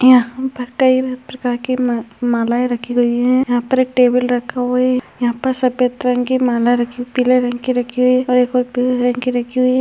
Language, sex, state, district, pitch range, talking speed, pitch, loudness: Hindi, male, Uttarakhand, Tehri Garhwal, 245-255 Hz, 230 wpm, 250 Hz, -16 LUFS